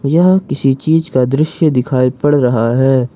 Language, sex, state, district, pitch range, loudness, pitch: Hindi, male, Jharkhand, Ranchi, 125-155 Hz, -13 LUFS, 135 Hz